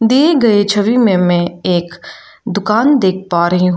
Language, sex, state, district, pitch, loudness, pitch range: Hindi, female, Arunachal Pradesh, Lower Dibang Valley, 200 Hz, -13 LUFS, 175-230 Hz